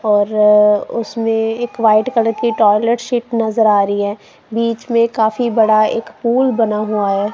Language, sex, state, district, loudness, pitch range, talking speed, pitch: Hindi, female, Punjab, Kapurthala, -15 LUFS, 210-230 Hz, 170 wpm, 225 Hz